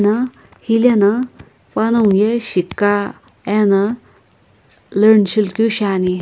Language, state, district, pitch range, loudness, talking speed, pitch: Sumi, Nagaland, Kohima, 200-225 Hz, -15 LUFS, 85 wpm, 210 Hz